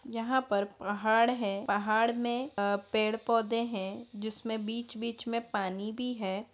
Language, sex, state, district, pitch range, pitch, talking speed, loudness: Hindi, female, Bihar, Araria, 205-235 Hz, 220 Hz, 140 wpm, -32 LUFS